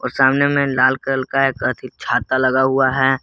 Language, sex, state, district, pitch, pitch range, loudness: Hindi, male, Jharkhand, Garhwa, 130 Hz, 130-135 Hz, -17 LUFS